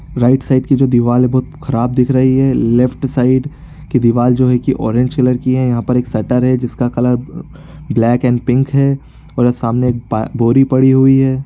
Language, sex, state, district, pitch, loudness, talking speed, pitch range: Hindi, male, Bihar, East Champaran, 125 Hz, -13 LUFS, 205 wpm, 125-135 Hz